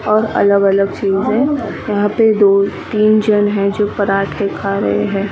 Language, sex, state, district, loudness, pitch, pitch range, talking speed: Hindi, female, Maharashtra, Mumbai Suburban, -14 LUFS, 205 Hz, 195-215 Hz, 180 wpm